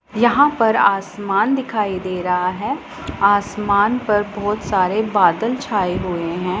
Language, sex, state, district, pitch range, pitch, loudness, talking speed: Hindi, female, Punjab, Pathankot, 185-225 Hz, 205 Hz, -18 LUFS, 135 wpm